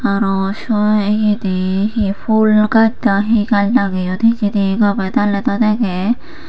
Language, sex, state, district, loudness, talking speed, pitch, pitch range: Chakma, female, Tripura, Unakoti, -15 LUFS, 150 wpm, 210 Hz, 200-225 Hz